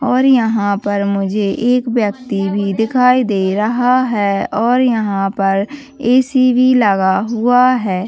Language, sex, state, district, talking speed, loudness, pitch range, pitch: Hindi, female, Chhattisgarh, Bastar, 150 wpm, -14 LUFS, 200-250 Hz, 225 Hz